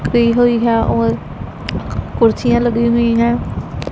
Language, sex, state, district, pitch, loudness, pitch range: Hindi, female, Punjab, Pathankot, 235 Hz, -15 LUFS, 230-240 Hz